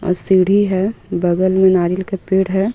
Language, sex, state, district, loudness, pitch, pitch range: Hindi, female, Jharkhand, Ranchi, -15 LUFS, 190 Hz, 185-195 Hz